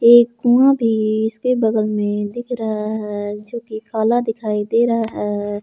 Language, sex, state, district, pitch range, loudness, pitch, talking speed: Hindi, male, Jharkhand, Palamu, 210-235 Hz, -18 LUFS, 220 Hz, 170 wpm